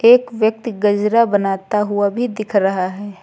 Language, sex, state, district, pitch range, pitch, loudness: Hindi, female, Uttar Pradesh, Lucknow, 200-230 Hz, 210 Hz, -17 LUFS